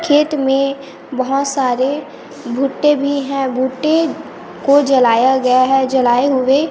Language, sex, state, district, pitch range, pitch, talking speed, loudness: Hindi, female, Chhattisgarh, Raipur, 260-285 Hz, 270 Hz, 125 wpm, -15 LUFS